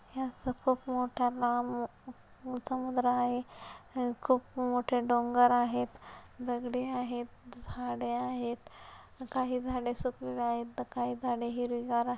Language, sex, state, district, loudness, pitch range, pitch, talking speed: Marathi, female, Maharashtra, Pune, -33 LUFS, 240-255 Hz, 245 Hz, 115 wpm